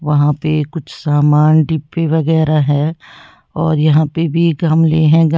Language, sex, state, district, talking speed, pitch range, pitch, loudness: Hindi, female, Uttar Pradesh, Lalitpur, 165 wpm, 150-160 Hz, 155 Hz, -14 LUFS